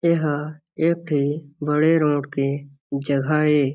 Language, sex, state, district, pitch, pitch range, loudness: Chhattisgarhi, male, Chhattisgarh, Jashpur, 150 Hz, 140-155 Hz, -22 LUFS